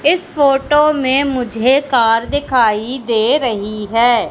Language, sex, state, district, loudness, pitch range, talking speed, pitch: Hindi, female, Madhya Pradesh, Katni, -14 LUFS, 230-280 Hz, 125 wpm, 255 Hz